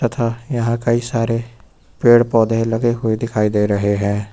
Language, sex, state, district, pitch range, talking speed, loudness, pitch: Hindi, male, Uttar Pradesh, Lucknow, 110-120 Hz, 165 wpm, -17 LUFS, 115 Hz